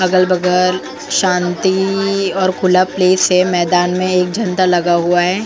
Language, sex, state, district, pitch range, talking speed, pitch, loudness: Hindi, female, Goa, North and South Goa, 180-185 Hz, 145 wpm, 185 Hz, -14 LUFS